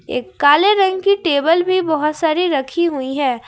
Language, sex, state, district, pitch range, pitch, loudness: Hindi, female, Jharkhand, Ranchi, 285-360 Hz, 315 Hz, -16 LUFS